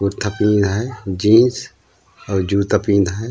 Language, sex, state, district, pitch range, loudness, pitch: Chhattisgarhi, male, Chhattisgarh, Raigarh, 100-110 Hz, -17 LUFS, 105 Hz